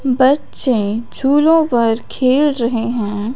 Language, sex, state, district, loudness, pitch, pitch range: Hindi, female, Punjab, Fazilka, -15 LUFS, 255 Hz, 230-275 Hz